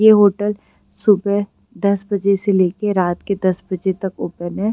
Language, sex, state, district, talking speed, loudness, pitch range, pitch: Hindi, female, Uttar Pradesh, Gorakhpur, 150 wpm, -18 LUFS, 185-205 Hz, 200 Hz